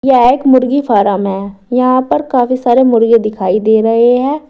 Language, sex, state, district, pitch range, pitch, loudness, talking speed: Hindi, female, Uttar Pradesh, Saharanpur, 220-255 Hz, 245 Hz, -11 LUFS, 185 wpm